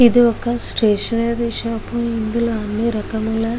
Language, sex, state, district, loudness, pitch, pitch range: Telugu, female, Andhra Pradesh, Guntur, -19 LUFS, 230 Hz, 220-235 Hz